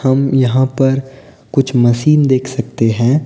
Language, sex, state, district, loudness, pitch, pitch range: Hindi, male, Odisha, Nuapada, -14 LUFS, 130 Hz, 125-135 Hz